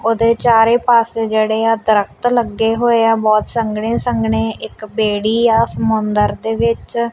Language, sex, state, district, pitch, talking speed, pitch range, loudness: Punjabi, female, Punjab, Kapurthala, 225 Hz, 150 wpm, 215-230 Hz, -15 LUFS